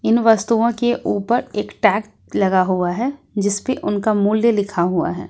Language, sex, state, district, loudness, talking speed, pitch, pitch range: Hindi, female, Jharkhand, Ranchi, -18 LUFS, 170 wpm, 210 Hz, 195-235 Hz